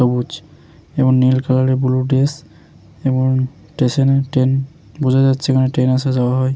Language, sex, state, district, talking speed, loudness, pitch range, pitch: Bengali, male, West Bengal, Jalpaiguri, 175 wpm, -16 LUFS, 130-135 Hz, 130 Hz